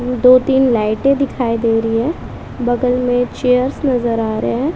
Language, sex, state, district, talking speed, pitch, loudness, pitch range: Hindi, female, Bihar, West Champaran, 175 wpm, 250 Hz, -15 LUFS, 230-255 Hz